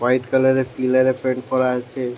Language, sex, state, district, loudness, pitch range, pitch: Bengali, male, West Bengal, Jhargram, -19 LUFS, 125-130 Hz, 130 Hz